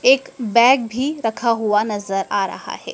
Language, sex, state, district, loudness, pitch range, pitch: Hindi, female, Madhya Pradesh, Dhar, -18 LUFS, 215-260 Hz, 230 Hz